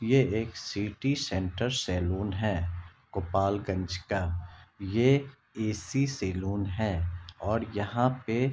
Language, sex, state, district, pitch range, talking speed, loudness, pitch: Hindi, male, Bihar, Kishanganj, 95-120 Hz, 105 wpm, -30 LUFS, 100 Hz